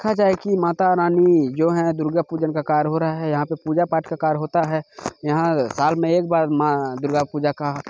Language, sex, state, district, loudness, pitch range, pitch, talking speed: Hindi, male, Chhattisgarh, Bilaspur, -20 LUFS, 150-170 Hz, 160 Hz, 235 wpm